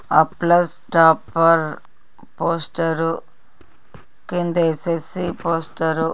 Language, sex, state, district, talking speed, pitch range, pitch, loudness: Telugu, male, Andhra Pradesh, Guntur, 50 wpm, 160-170 Hz, 165 Hz, -19 LUFS